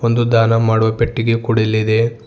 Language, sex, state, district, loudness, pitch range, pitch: Kannada, male, Karnataka, Bidar, -15 LUFS, 110-115 Hz, 115 Hz